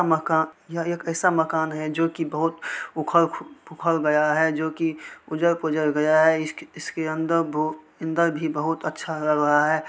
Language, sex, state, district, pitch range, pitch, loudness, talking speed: Maithili, male, Bihar, Supaul, 155-165 Hz, 160 Hz, -23 LUFS, 175 wpm